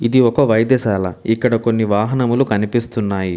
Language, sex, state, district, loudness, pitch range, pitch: Telugu, male, Telangana, Hyderabad, -16 LUFS, 105-120 Hz, 115 Hz